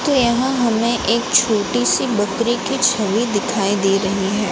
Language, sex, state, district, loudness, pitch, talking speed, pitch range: Hindi, female, Gujarat, Gandhinagar, -17 LUFS, 230 Hz, 170 wpm, 205-245 Hz